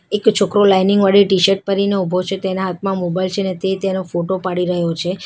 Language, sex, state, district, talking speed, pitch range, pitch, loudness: Gujarati, female, Gujarat, Valsad, 215 wpm, 185-195 Hz, 190 Hz, -16 LUFS